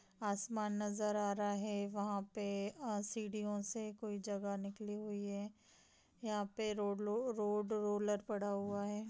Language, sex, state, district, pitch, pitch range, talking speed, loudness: Hindi, female, Jharkhand, Sahebganj, 210 Hz, 205-210 Hz, 145 wpm, -41 LUFS